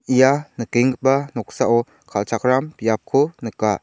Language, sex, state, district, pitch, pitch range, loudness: Garo, male, Meghalaya, South Garo Hills, 125 Hz, 115-135 Hz, -20 LUFS